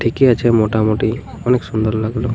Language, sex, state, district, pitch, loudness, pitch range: Bengali, male, Jharkhand, Jamtara, 115 Hz, -16 LUFS, 110-120 Hz